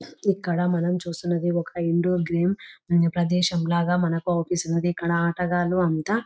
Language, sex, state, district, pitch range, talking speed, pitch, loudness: Telugu, female, Telangana, Nalgonda, 170-180 Hz, 115 wpm, 175 Hz, -24 LUFS